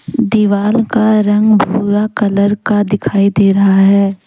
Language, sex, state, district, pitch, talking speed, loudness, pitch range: Hindi, female, Jharkhand, Deoghar, 205 Hz, 140 wpm, -12 LUFS, 200-215 Hz